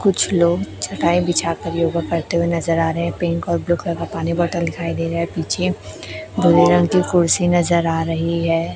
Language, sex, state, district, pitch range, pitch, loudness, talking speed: Hindi, male, Chhattisgarh, Raipur, 165-175 Hz, 170 Hz, -18 LUFS, 210 wpm